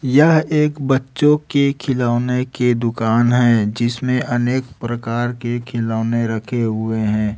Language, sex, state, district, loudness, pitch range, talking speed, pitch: Hindi, male, Chhattisgarh, Raipur, -18 LUFS, 115-130 Hz, 130 wpm, 120 Hz